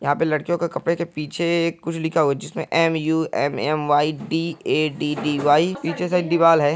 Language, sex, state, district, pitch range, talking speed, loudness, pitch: Hindi, male, Uttar Pradesh, Hamirpur, 150-170 Hz, 150 wpm, -21 LUFS, 160 Hz